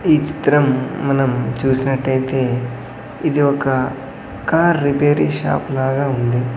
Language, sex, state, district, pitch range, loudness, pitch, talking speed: Telugu, male, Andhra Pradesh, Sri Satya Sai, 125-145 Hz, -17 LUFS, 135 Hz, 100 wpm